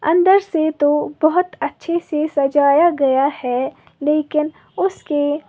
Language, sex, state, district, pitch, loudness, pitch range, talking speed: Hindi, female, Uttar Pradesh, Lalitpur, 300 Hz, -18 LUFS, 290-330 Hz, 120 wpm